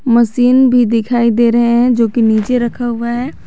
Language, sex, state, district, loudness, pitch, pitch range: Hindi, male, Jharkhand, Garhwa, -12 LUFS, 235 Hz, 235-245 Hz